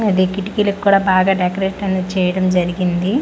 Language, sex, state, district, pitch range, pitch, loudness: Telugu, female, Andhra Pradesh, Manyam, 185-195 Hz, 190 Hz, -16 LUFS